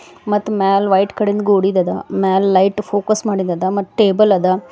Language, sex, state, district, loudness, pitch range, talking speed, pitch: Kannada, female, Karnataka, Bidar, -16 LUFS, 190-205 Hz, 165 wpm, 195 Hz